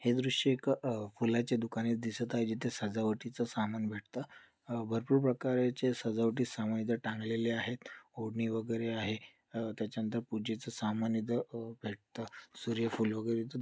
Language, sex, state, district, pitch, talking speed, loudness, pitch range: Marathi, male, Maharashtra, Dhule, 115 Hz, 145 wpm, -35 LUFS, 110-120 Hz